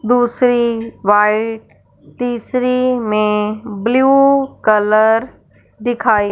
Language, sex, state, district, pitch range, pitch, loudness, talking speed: Hindi, female, Punjab, Fazilka, 215-245 Hz, 230 Hz, -15 LUFS, 65 wpm